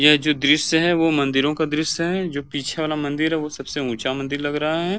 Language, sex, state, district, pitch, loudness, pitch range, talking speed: Hindi, male, Uttar Pradesh, Varanasi, 150 Hz, -21 LUFS, 145-160 Hz, 250 wpm